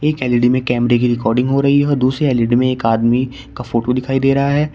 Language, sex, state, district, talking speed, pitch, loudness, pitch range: Hindi, male, Uttar Pradesh, Shamli, 255 wpm, 125 Hz, -15 LUFS, 120-135 Hz